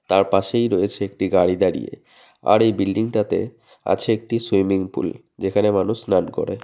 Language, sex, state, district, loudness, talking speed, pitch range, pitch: Bengali, male, West Bengal, North 24 Parganas, -20 LUFS, 165 wpm, 95-110 Hz, 105 Hz